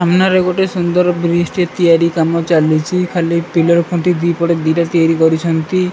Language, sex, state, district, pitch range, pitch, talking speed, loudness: Odia, male, Odisha, Malkangiri, 165-180 Hz, 170 Hz, 150 wpm, -14 LUFS